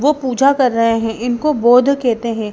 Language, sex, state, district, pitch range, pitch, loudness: Hindi, female, Himachal Pradesh, Shimla, 230-275 Hz, 245 Hz, -14 LUFS